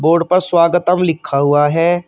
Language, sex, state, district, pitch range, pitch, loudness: Hindi, male, Uttar Pradesh, Shamli, 155-175 Hz, 170 Hz, -14 LUFS